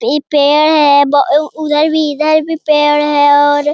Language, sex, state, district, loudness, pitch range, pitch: Hindi, male, Bihar, Jamui, -11 LUFS, 290-310 Hz, 295 Hz